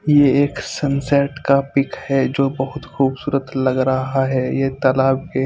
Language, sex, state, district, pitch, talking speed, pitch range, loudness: Hindi, male, Punjab, Fazilka, 135 Hz, 175 wpm, 135-140 Hz, -18 LUFS